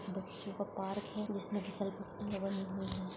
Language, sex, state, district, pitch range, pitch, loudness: Hindi, female, Maharashtra, Solapur, 195-205 Hz, 200 Hz, -40 LUFS